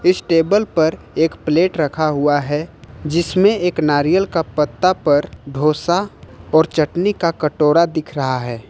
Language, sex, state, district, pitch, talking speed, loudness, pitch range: Hindi, male, Jharkhand, Ranchi, 160 Hz, 150 wpm, -17 LUFS, 150-175 Hz